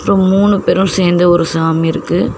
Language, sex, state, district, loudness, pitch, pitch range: Tamil, female, Tamil Nadu, Chennai, -12 LUFS, 175 Hz, 165-190 Hz